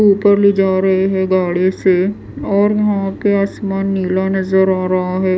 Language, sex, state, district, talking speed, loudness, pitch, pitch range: Hindi, female, Bihar, West Champaran, 180 wpm, -15 LUFS, 190 Hz, 185-200 Hz